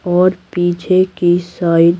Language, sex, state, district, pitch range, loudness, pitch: Hindi, female, Bihar, Patna, 175-185 Hz, -14 LUFS, 175 Hz